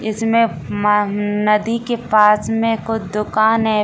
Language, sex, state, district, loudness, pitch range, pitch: Hindi, female, Bihar, Saran, -17 LUFS, 210-225 Hz, 215 Hz